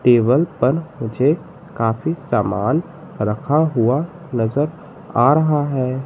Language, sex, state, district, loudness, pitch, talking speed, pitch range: Hindi, male, Madhya Pradesh, Katni, -19 LUFS, 145 Hz, 110 wpm, 120-160 Hz